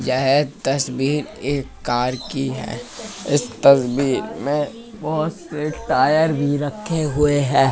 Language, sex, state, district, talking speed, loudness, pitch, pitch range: Hindi, male, Uttar Pradesh, Hamirpur, 125 wpm, -20 LUFS, 145 Hz, 135-155 Hz